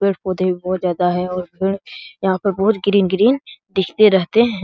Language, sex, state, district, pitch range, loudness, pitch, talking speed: Hindi, male, Bihar, Jahanabad, 185-200 Hz, -18 LUFS, 190 Hz, 195 wpm